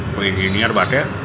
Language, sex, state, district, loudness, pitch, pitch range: Hindi, male, Bihar, Gopalganj, -17 LUFS, 100 Hz, 100-115 Hz